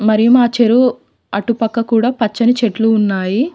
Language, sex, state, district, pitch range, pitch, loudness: Telugu, female, Telangana, Mahabubabad, 220-240 Hz, 230 Hz, -14 LUFS